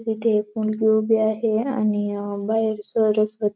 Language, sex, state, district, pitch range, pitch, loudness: Marathi, female, Maharashtra, Dhule, 210-220 Hz, 220 Hz, -22 LUFS